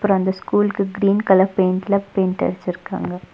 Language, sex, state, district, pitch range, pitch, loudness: Tamil, female, Tamil Nadu, Nilgiris, 185-200 Hz, 190 Hz, -19 LUFS